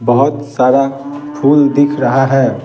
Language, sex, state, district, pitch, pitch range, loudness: Hindi, male, Bihar, Patna, 140 Hz, 135-145 Hz, -12 LUFS